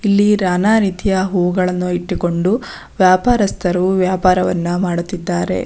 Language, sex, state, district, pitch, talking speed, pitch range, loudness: Kannada, female, Karnataka, Belgaum, 185 Hz, 85 wpm, 180-195 Hz, -16 LUFS